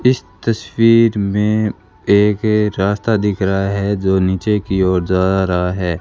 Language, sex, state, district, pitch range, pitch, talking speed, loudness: Hindi, male, Rajasthan, Bikaner, 95-105 Hz, 100 Hz, 150 wpm, -16 LUFS